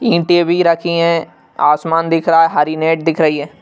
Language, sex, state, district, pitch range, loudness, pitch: Hindi, male, Madhya Pradesh, Bhopal, 155-170 Hz, -14 LUFS, 165 Hz